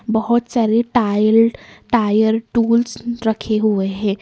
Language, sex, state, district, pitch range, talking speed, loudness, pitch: Hindi, male, Karnataka, Bangalore, 215-235 Hz, 115 wpm, -17 LUFS, 225 Hz